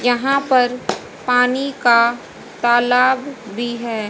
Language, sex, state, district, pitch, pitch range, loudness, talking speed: Hindi, female, Haryana, Jhajjar, 245 Hz, 240-255 Hz, -17 LUFS, 100 wpm